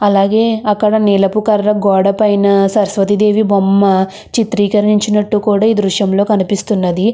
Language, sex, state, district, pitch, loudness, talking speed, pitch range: Telugu, female, Andhra Pradesh, Krishna, 205 Hz, -12 LUFS, 135 wpm, 200-210 Hz